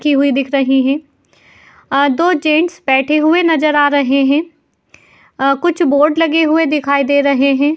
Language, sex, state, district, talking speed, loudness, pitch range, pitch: Hindi, female, Uttar Pradesh, Jalaun, 180 wpm, -13 LUFS, 275-315 Hz, 290 Hz